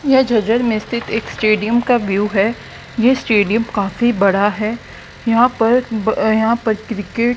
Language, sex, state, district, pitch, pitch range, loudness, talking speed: Hindi, female, Haryana, Jhajjar, 225 Hz, 215-240 Hz, -16 LUFS, 165 wpm